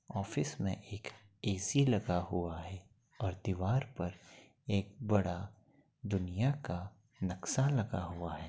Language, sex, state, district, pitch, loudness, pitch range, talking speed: Hindi, male, Uttar Pradesh, Gorakhpur, 100 Hz, -36 LUFS, 90-115 Hz, 125 wpm